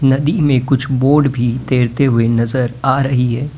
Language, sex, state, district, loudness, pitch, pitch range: Hindi, male, Uttar Pradesh, Lalitpur, -15 LUFS, 130 Hz, 125-140 Hz